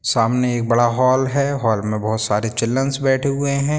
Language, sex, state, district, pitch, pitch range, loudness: Hindi, male, Bihar, Sitamarhi, 125 Hz, 115-140 Hz, -18 LUFS